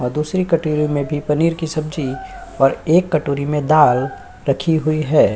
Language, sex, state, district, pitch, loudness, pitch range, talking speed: Hindi, female, Uttar Pradesh, Jyotiba Phule Nagar, 150 Hz, -18 LUFS, 140-160 Hz, 190 wpm